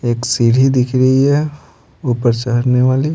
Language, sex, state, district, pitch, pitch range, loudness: Hindi, male, Bihar, Patna, 125 Hz, 120-135 Hz, -14 LUFS